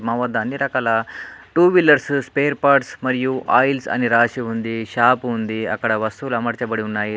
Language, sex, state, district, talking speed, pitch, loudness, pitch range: Telugu, male, Telangana, Adilabad, 160 wpm, 120 Hz, -19 LUFS, 115-135 Hz